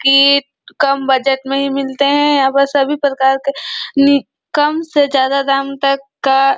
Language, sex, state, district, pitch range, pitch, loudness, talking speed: Hindi, female, Chhattisgarh, Korba, 275-280 Hz, 275 Hz, -14 LUFS, 180 wpm